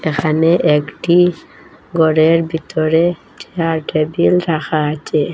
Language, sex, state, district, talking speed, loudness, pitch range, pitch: Bengali, female, Assam, Hailakandi, 90 wpm, -15 LUFS, 155-170 Hz, 160 Hz